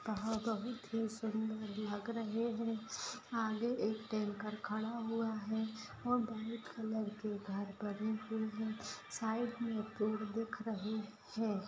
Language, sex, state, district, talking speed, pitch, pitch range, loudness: Hindi, female, Bihar, Purnia, 145 wpm, 220 Hz, 215-225 Hz, -40 LUFS